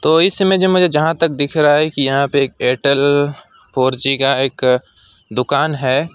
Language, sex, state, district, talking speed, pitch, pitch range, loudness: Hindi, male, West Bengal, Alipurduar, 205 wpm, 140 Hz, 130-155 Hz, -15 LUFS